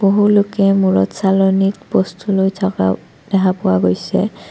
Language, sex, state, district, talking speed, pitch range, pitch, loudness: Assamese, female, Assam, Kamrup Metropolitan, 135 wpm, 160-195 Hz, 195 Hz, -16 LUFS